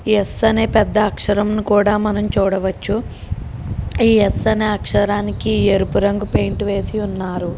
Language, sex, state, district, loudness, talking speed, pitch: Telugu, female, Telangana, Karimnagar, -17 LUFS, 125 wpm, 205 Hz